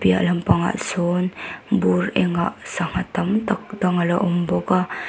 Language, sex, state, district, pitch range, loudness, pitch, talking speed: Mizo, female, Mizoram, Aizawl, 170-185 Hz, -21 LUFS, 175 Hz, 140 wpm